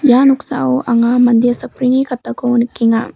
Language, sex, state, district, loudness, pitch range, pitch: Garo, female, Meghalaya, West Garo Hills, -14 LUFS, 235-260 Hz, 245 Hz